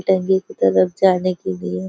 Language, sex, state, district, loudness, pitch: Hindi, female, Maharashtra, Nagpur, -18 LUFS, 140 Hz